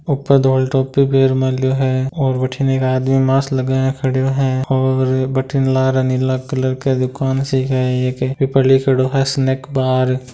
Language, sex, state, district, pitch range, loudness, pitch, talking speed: Marwari, male, Rajasthan, Nagaur, 130-135 Hz, -16 LUFS, 130 Hz, 160 wpm